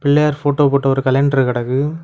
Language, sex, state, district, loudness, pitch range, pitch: Tamil, male, Tamil Nadu, Kanyakumari, -15 LUFS, 135-145 Hz, 140 Hz